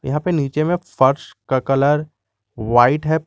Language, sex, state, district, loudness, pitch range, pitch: Hindi, male, Jharkhand, Garhwa, -18 LUFS, 125-155 Hz, 140 Hz